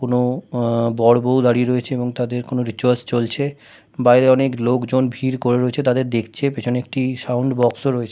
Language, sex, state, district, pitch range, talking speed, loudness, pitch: Bengali, male, West Bengal, Kolkata, 120-130 Hz, 175 wpm, -19 LUFS, 125 Hz